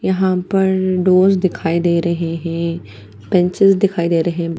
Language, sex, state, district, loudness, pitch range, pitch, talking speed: Hindi, female, Bihar, Patna, -16 LUFS, 165-190 Hz, 175 Hz, 155 wpm